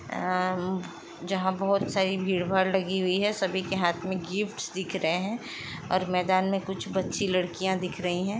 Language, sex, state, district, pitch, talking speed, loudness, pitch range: Hindi, female, Uttar Pradesh, Etah, 190 Hz, 200 wpm, -28 LUFS, 185-190 Hz